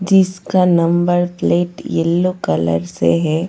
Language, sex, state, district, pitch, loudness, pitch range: Hindi, female, Goa, North and South Goa, 175 Hz, -16 LUFS, 155-180 Hz